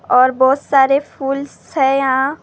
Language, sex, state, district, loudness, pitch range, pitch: Hindi, female, Maharashtra, Gondia, -15 LUFS, 265-275 Hz, 270 Hz